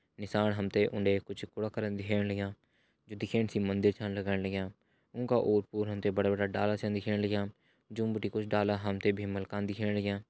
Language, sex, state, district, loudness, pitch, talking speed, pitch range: Hindi, male, Uttarakhand, Uttarkashi, -33 LUFS, 105 Hz, 200 wpm, 100-105 Hz